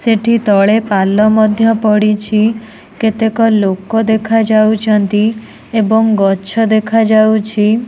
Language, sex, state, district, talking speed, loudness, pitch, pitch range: Odia, female, Odisha, Nuapada, 85 wpm, -12 LUFS, 220 Hz, 210-225 Hz